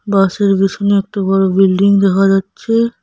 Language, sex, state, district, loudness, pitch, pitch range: Bengali, female, West Bengal, Cooch Behar, -13 LUFS, 195 Hz, 195-200 Hz